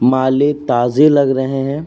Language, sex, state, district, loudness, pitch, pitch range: Hindi, male, Uttar Pradesh, Jyotiba Phule Nagar, -14 LUFS, 135 Hz, 130-145 Hz